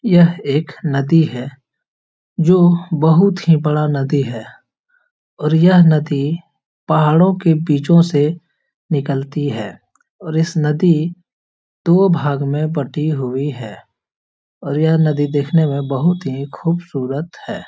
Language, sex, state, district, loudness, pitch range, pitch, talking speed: Hindi, male, Bihar, Jahanabad, -16 LUFS, 140-170 Hz, 155 Hz, 130 wpm